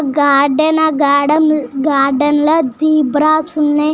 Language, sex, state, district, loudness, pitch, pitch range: Telugu, female, Telangana, Nalgonda, -13 LUFS, 300 Hz, 285-310 Hz